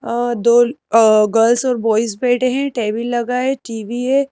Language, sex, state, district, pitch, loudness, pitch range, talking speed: Hindi, female, Madhya Pradesh, Bhopal, 240 Hz, -16 LUFS, 225-255 Hz, 180 wpm